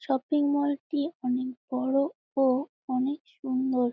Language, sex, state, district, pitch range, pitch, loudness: Bengali, female, West Bengal, Jalpaiguri, 255-285 Hz, 270 Hz, -29 LUFS